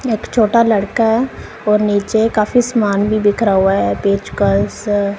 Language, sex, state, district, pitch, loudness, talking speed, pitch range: Hindi, female, Punjab, Kapurthala, 210 Hz, -15 LUFS, 140 wpm, 200-225 Hz